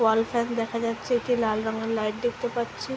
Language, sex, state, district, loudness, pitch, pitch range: Bengali, female, West Bengal, Purulia, -27 LUFS, 230 Hz, 220-240 Hz